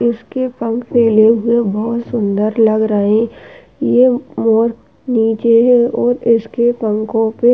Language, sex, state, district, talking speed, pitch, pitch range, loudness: Hindi, female, Uttar Pradesh, Hamirpur, 135 wpm, 230 Hz, 225-240 Hz, -14 LUFS